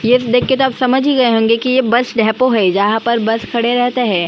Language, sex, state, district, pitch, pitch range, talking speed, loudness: Hindi, female, Maharashtra, Aurangabad, 240 Hz, 225-255 Hz, 265 wpm, -14 LUFS